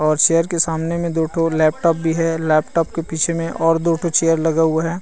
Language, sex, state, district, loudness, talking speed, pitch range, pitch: Chhattisgarhi, male, Chhattisgarh, Rajnandgaon, -17 LUFS, 265 wpm, 160-165 Hz, 165 Hz